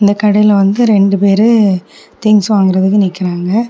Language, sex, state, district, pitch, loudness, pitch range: Tamil, female, Tamil Nadu, Kanyakumari, 205 Hz, -11 LUFS, 195-210 Hz